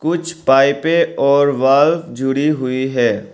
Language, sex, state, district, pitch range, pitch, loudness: Hindi, male, Arunachal Pradesh, Longding, 135-160 Hz, 140 Hz, -15 LUFS